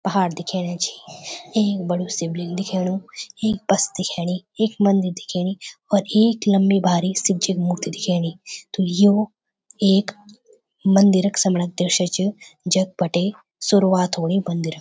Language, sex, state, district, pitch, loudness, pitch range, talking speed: Garhwali, female, Uttarakhand, Tehri Garhwal, 190 Hz, -20 LUFS, 180-200 Hz, 140 wpm